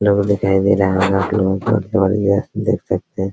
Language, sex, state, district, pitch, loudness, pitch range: Hindi, male, Bihar, Araria, 100 Hz, -17 LUFS, 95-105 Hz